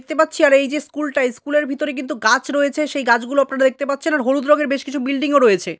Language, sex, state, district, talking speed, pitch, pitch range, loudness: Bengali, female, West Bengal, Purulia, 250 wpm, 285 Hz, 270-295 Hz, -18 LUFS